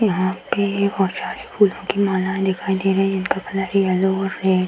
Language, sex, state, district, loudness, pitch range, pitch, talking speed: Hindi, female, Uttar Pradesh, Hamirpur, -20 LUFS, 190-195 Hz, 195 Hz, 230 wpm